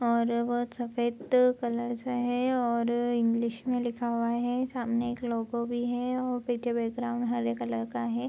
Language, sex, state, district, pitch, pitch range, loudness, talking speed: Hindi, female, Bihar, Araria, 240 Hz, 235-245 Hz, -30 LUFS, 160 wpm